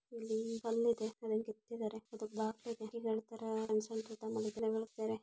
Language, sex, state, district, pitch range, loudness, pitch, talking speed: Kannada, female, Karnataka, Belgaum, 220-225 Hz, -40 LUFS, 220 Hz, 90 wpm